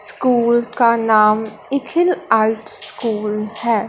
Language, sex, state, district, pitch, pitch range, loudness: Hindi, male, Punjab, Fazilka, 225 Hz, 215-240 Hz, -17 LUFS